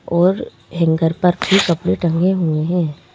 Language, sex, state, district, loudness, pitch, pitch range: Hindi, female, Madhya Pradesh, Bhopal, -17 LUFS, 170 Hz, 160-180 Hz